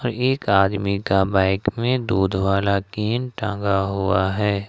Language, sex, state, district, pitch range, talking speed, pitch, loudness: Hindi, male, Jharkhand, Ranchi, 95-110 Hz, 155 wpm, 100 Hz, -21 LUFS